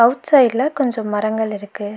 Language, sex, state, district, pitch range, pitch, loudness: Tamil, female, Tamil Nadu, Nilgiris, 210-265 Hz, 225 Hz, -17 LUFS